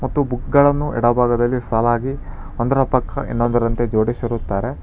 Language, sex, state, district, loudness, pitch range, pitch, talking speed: Kannada, male, Karnataka, Bangalore, -18 LUFS, 115-130 Hz, 120 Hz, 110 wpm